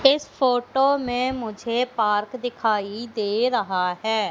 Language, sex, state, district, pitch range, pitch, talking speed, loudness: Hindi, female, Madhya Pradesh, Katni, 215-255 Hz, 235 Hz, 125 wpm, -23 LUFS